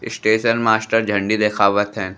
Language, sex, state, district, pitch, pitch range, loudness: Bhojpuri, male, Uttar Pradesh, Deoria, 110 Hz, 100-110 Hz, -17 LUFS